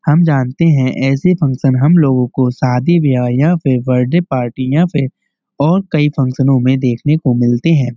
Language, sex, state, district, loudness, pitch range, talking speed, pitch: Hindi, male, Uttar Pradesh, Muzaffarnagar, -13 LUFS, 125-155 Hz, 180 wpm, 135 Hz